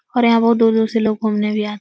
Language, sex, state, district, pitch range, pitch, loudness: Hindi, female, Uttar Pradesh, Etah, 210-230 Hz, 225 Hz, -16 LUFS